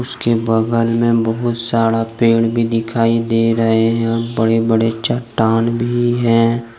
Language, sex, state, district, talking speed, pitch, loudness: Hindi, male, Jharkhand, Deoghar, 135 wpm, 115 Hz, -16 LUFS